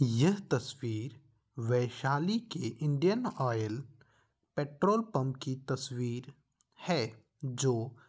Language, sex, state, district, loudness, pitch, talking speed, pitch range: Hindi, male, Bihar, Vaishali, -33 LUFS, 130 Hz, 90 wpm, 120-145 Hz